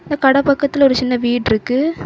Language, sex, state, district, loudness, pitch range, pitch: Tamil, female, Tamil Nadu, Kanyakumari, -15 LUFS, 250-285 Hz, 270 Hz